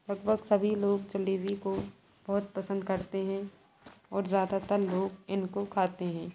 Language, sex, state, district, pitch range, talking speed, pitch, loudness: Hindi, female, Bihar, Sitamarhi, 190-200 Hz, 140 wpm, 195 Hz, -32 LUFS